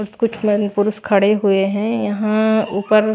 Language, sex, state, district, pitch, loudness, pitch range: Hindi, female, Chhattisgarh, Raipur, 210 Hz, -17 LUFS, 205-215 Hz